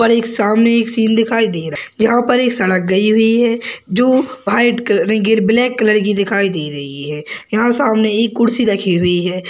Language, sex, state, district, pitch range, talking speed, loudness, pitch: Hindi, male, Chhattisgarh, Sarguja, 200-230 Hz, 230 wpm, -14 LUFS, 220 Hz